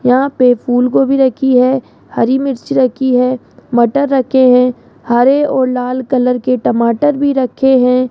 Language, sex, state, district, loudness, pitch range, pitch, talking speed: Hindi, female, Rajasthan, Jaipur, -12 LUFS, 250-265 Hz, 255 Hz, 165 wpm